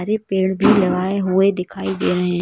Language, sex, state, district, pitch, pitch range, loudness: Hindi, female, Madhya Pradesh, Bhopal, 190 Hz, 180-195 Hz, -18 LUFS